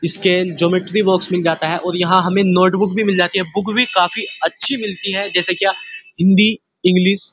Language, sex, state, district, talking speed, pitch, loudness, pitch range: Hindi, male, Uttar Pradesh, Muzaffarnagar, 205 wpm, 185 Hz, -16 LUFS, 180-200 Hz